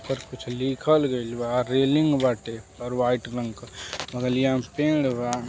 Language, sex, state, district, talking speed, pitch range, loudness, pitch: Bhojpuri, male, Uttar Pradesh, Deoria, 165 wpm, 120-135 Hz, -25 LUFS, 125 Hz